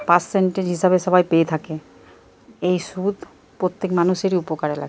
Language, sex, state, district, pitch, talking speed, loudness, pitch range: Bengali, male, Jharkhand, Jamtara, 180 Hz, 135 wpm, -20 LUFS, 160-185 Hz